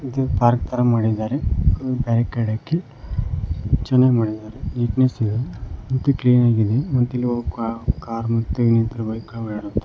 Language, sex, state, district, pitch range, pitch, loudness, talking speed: Kannada, male, Karnataka, Koppal, 110-125 Hz, 115 Hz, -21 LUFS, 95 wpm